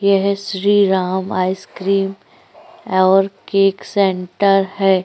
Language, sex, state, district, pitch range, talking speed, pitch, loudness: Hindi, female, Uttar Pradesh, Jyotiba Phule Nagar, 190-200 Hz, 95 wpm, 195 Hz, -17 LUFS